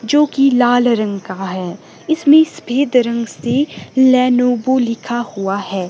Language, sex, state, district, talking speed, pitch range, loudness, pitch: Hindi, female, Himachal Pradesh, Shimla, 130 wpm, 210-265 Hz, -15 LUFS, 245 Hz